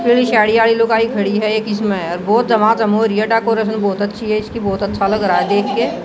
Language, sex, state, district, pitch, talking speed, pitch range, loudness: Hindi, female, Haryana, Jhajjar, 215 Hz, 240 wpm, 205-225 Hz, -15 LUFS